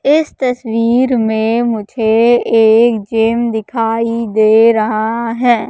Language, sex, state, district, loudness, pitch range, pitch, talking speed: Hindi, female, Madhya Pradesh, Katni, -13 LUFS, 220-240 Hz, 230 Hz, 105 wpm